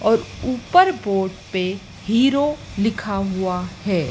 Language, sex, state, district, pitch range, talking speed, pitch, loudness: Hindi, female, Madhya Pradesh, Dhar, 190-250 Hz, 115 wpm, 200 Hz, -21 LUFS